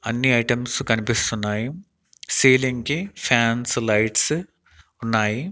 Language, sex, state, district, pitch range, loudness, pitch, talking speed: Telugu, male, Andhra Pradesh, Annamaya, 115-140 Hz, -21 LUFS, 120 Hz, 85 wpm